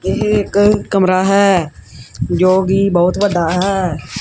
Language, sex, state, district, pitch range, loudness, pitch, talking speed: Punjabi, male, Punjab, Kapurthala, 175-200 Hz, -14 LUFS, 190 Hz, 130 wpm